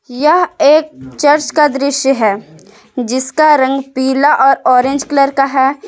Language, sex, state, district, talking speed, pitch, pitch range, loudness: Hindi, female, Jharkhand, Palamu, 145 wpm, 275 Hz, 255-295 Hz, -12 LUFS